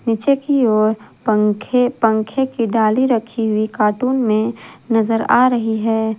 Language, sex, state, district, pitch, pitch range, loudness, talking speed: Hindi, female, Jharkhand, Garhwa, 225 Hz, 215-245 Hz, -17 LUFS, 145 wpm